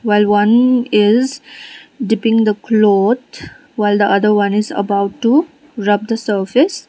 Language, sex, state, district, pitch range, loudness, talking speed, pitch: English, female, Sikkim, Gangtok, 205-250 Hz, -14 LUFS, 130 wpm, 220 Hz